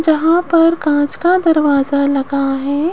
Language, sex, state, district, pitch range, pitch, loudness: Hindi, female, Rajasthan, Jaipur, 280-330 Hz, 300 Hz, -14 LUFS